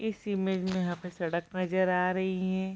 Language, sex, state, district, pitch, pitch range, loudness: Hindi, female, Bihar, Kishanganj, 185 Hz, 180-190 Hz, -31 LUFS